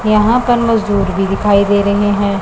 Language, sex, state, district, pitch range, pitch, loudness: Hindi, male, Punjab, Pathankot, 200-215 Hz, 205 Hz, -13 LUFS